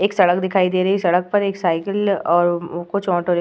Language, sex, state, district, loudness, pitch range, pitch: Hindi, female, Uttar Pradesh, Etah, -19 LUFS, 175-200 Hz, 185 Hz